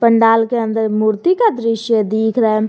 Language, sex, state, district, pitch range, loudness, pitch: Hindi, female, Jharkhand, Garhwa, 215-230 Hz, -15 LUFS, 225 Hz